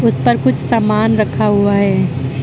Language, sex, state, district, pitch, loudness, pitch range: Hindi, female, Uttar Pradesh, Lucknow, 185 Hz, -14 LUFS, 130-210 Hz